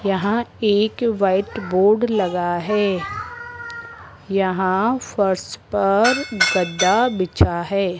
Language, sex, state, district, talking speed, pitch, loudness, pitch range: Hindi, female, Rajasthan, Jaipur, 90 wpm, 200 Hz, -19 LUFS, 190-235 Hz